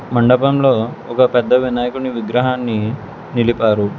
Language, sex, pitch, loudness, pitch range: Telugu, male, 125 Hz, -16 LUFS, 120-130 Hz